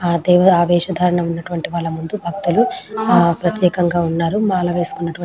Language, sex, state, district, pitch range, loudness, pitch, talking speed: Telugu, female, Telangana, Nalgonda, 170-185 Hz, -17 LUFS, 175 Hz, 135 wpm